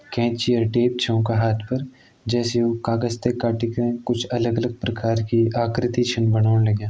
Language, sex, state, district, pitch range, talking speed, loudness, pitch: Garhwali, male, Uttarakhand, Tehri Garhwal, 115-120 Hz, 190 wpm, -22 LUFS, 120 Hz